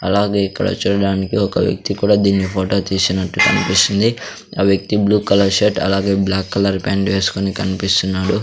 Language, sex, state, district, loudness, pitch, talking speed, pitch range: Telugu, male, Andhra Pradesh, Sri Satya Sai, -16 LUFS, 100 Hz, 155 wpm, 95-100 Hz